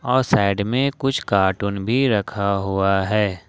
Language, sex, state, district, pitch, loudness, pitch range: Hindi, male, Jharkhand, Ranchi, 100 Hz, -20 LUFS, 100-125 Hz